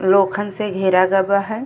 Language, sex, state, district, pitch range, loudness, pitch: Bhojpuri, female, Uttar Pradesh, Deoria, 190-205 Hz, -17 LUFS, 195 Hz